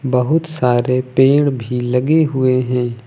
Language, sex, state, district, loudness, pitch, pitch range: Hindi, male, Uttar Pradesh, Lucknow, -15 LUFS, 125 Hz, 125-140 Hz